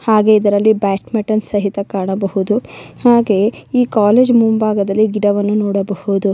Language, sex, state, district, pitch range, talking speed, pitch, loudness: Kannada, female, Karnataka, Bellary, 200-220 Hz, 115 wpm, 210 Hz, -14 LUFS